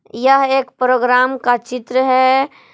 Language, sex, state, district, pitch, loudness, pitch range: Hindi, female, Jharkhand, Palamu, 255 Hz, -15 LUFS, 250-265 Hz